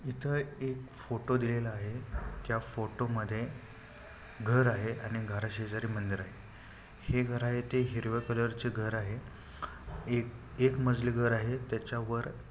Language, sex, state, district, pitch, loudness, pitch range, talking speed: Marathi, male, Maharashtra, Pune, 115 Hz, -34 LUFS, 110-125 Hz, 145 wpm